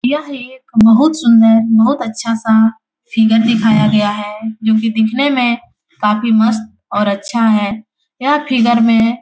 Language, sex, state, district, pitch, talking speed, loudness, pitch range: Hindi, female, Bihar, Jahanabad, 225 Hz, 155 wpm, -13 LUFS, 220-240 Hz